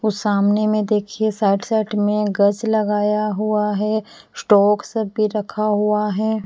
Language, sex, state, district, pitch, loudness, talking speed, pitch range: Hindi, female, Punjab, Pathankot, 210 Hz, -19 LUFS, 160 wpm, 205-215 Hz